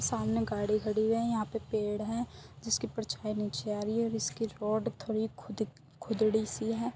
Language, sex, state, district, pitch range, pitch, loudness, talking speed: Hindi, female, Uttar Pradesh, Muzaffarnagar, 210-225 Hz, 220 Hz, -33 LUFS, 180 wpm